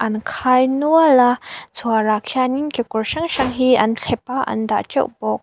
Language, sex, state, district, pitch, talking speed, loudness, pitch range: Mizo, female, Mizoram, Aizawl, 250 Hz, 200 wpm, -18 LUFS, 220-265 Hz